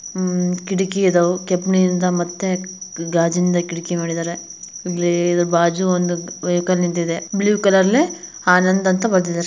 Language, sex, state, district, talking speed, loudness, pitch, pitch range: Kannada, female, Karnataka, Bijapur, 115 wpm, -18 LUFS, 180 Hz, 175-185 Hz